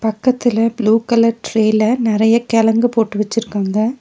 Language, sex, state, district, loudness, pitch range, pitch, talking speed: Tamil, female, Tamil Nadu, Nilgiris, -15 LUFS, 220-230 Hz, 225 Hz, 120 wpm